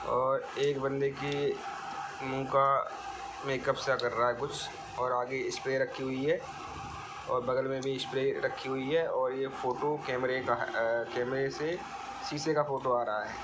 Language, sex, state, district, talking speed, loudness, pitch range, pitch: Hindi, male, Bihar, Sitamarhi, 185 wpm, -32 LUFS, 130-140 Hz, 135 Hz